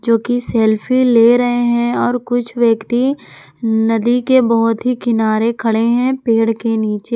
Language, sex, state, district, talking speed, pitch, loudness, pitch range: Hindi, female, Jharkhand, Palamu, 160 wpm, 235 Hz, -15 LUFS, 225-245 Hz